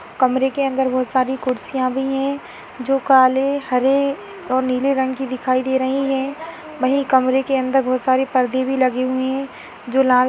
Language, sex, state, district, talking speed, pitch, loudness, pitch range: Hindi, female, Uttar Pradesh, Ghazipur, 190 wpm, 265 Hz, -19 LUFS, 255-270 Hz